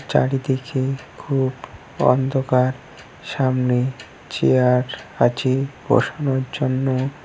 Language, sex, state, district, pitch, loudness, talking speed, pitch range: Bengali, male, West Bengal, Cooch Behar, 130 Hz, -20 LUFS, 65 wpm, 130-135 Hz